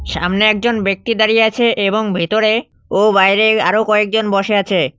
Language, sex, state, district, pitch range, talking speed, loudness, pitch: Bengali, male, West Bengal, Cooch Behar, 195-220 Hz, 155 wpm, -14 LUFS, 215 Hz